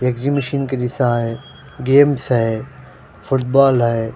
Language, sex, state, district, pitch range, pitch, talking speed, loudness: Hindi, male, Punjab, Pathankot, 120-140 Hz, 130 Hz, 130 wpm, -17 LUFS